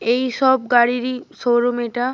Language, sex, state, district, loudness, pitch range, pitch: Bengali, female, Jharkhand, Jamtara, -18 LUFS, 240-255 Hz, 245 Hz